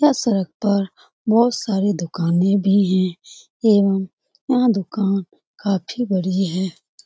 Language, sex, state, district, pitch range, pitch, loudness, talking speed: Hindi, female, Bihar, Lakhisarai, 185-220 Hz, 195 Hz, -20 LUFS, 120 wpm